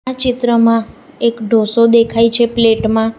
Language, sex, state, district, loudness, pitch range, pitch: Gujarati, female, Gujarat, Valsad, -13 LUFS, 225-235 Hz, 230 Hz